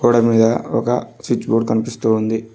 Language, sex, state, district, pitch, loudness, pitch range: Telugu, male, Telangana, Mahabubabad, 115 Hz, -17 LUFS, 110-115 Hz